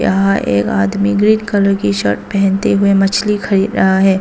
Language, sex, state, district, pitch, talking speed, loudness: Hindi, female, Arunachal Pradesh, Papum Pare, 195 Hz, 185 wpm, -13 LUFS